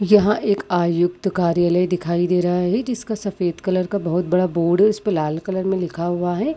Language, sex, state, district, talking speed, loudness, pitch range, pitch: Hindi, female, Chhattisgarh, Bilaspur, 210 wpm, -20 LUFS, 175-200 Hz, 180 Hz